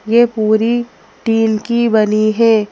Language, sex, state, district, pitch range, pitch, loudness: Hindi, female, Madhya Pradesh, Bhopal, 215-235 Hz, 225 Hz, -14 LUFS